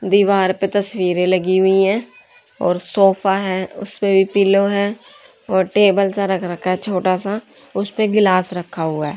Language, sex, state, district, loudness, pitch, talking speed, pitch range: Hindi, female, Haryana, Charkhi Dadri, -17 LUFS, 195 Hz, 170 wpm, 185-200 Hz